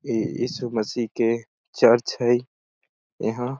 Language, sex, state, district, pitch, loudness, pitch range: Awadhi, male, Chhattisgarh, Balrampur, 120 Hz, -23 LUFS, 110-125 Hz